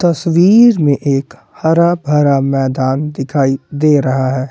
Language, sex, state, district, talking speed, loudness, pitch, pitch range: Hindi, male, Jharkhand, Palamu, 135 wpm, -13 LUFS, 145 Hz, 135-165 Hz